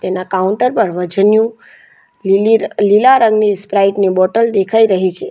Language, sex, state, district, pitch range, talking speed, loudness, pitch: Gujarati, female, Gujarat, Valsad, 190-225 Hz, 145 wpm, -13 LUFS, 205 Hz